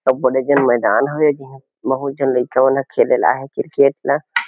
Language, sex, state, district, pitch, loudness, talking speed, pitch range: Chhattisgarhi, male, Chhattisgarh, Kabirdham, 135 Hz, -16 LUFS, 185 wpm, 130-140 Hz